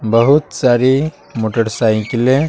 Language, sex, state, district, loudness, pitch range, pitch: Hindi, male, Bihar, Patna, -15 LUFS, 115-140 Hz, 125 Hz